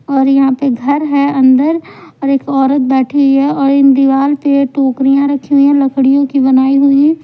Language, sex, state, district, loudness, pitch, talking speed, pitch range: Hindi, female, Punjab, Pathankot, -11 LUFS, 275 Hz, 190 wpm, 270-280 Hz